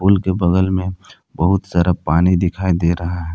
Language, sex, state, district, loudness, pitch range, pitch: Hindi, male, Jharkhand, Palamu, -17 LUFS, 85-95 Hz, 90 Hz